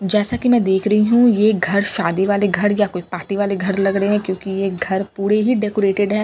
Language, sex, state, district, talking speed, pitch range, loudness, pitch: Hindi, female, Bihar, Katihar, 280 wpm, 195-210 Hz, -17 LUFS, 200 Hz